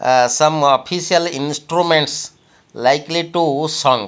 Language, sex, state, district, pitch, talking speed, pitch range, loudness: English, male, Odisha, Malkangiri, 155 Hz, 105 wpm, 140-170 Hz, -16 LUFS